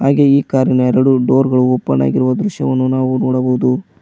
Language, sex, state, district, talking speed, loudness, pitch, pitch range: Kannada, male, Karnataka, Koppal, 180 wpm, -14 LUFS, 130 Hz, 125-130 Hz